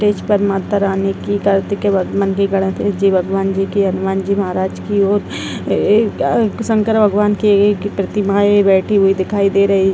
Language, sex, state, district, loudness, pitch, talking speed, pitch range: Hindi, female, Uttar Pradesh, Etah, -15 LUFS, 200 Hz, 165 wpm, 195-205 Hz